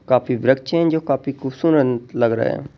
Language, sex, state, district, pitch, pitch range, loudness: Hindi, male, Madhya Pradesh, Bhopal, 135 Hz, 125-150 Hz, -19 LUFS